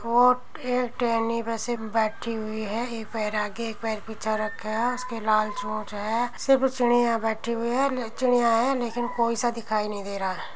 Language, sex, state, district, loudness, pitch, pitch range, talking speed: Hindi, female, Uttar Pradesh, Muzaffarnagar, -26 LUFS, 230 Hz, 215-240 Hz, 115 wpm